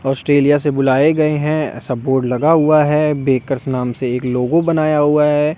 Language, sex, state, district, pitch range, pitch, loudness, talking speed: Hindi, male, Delhi, New Delhi, 130-150 Hz, 145 Hz, -15 LUFS, 195 wpm